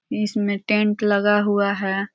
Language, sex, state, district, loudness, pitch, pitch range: Hindi, female, Uttar Pradesh, Ghazipur, -20 LUFS, 205 Hz, 200-210 Hz